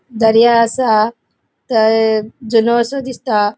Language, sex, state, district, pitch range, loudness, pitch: Konkani, female, Goa, North and South Goa, 220-235 Hz, -14 LUFS, 225 Hz